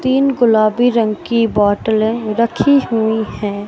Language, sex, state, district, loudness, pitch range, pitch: Hindi, male, Madhya Pradesh, Katni, -15 LUFS, 215-240 Hz, 225 Hz